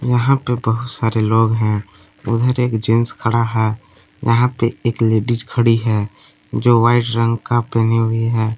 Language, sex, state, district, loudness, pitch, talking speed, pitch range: Hindi, male, Jharkhand, Palamu, -17 LUFS, 115 Hz, 170 wpm, 110-120 Hz